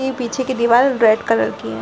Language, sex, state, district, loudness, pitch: Hindi, female, Bihar, Gaya, -16 LUFS, 235 Hz